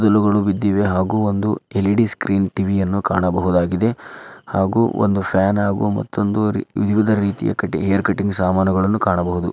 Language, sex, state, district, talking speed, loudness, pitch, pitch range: Kannada, male, Karnataka, Dharwad, 130 wpm, -18 LUFS, 100 Hz, 95-105 Hz